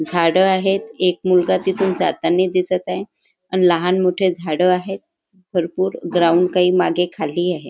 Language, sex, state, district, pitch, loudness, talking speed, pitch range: Marathi, female, Maharashtra, Nagpur, 180 Hz, -18 LUFS, 150 wpm, 175-185 Hz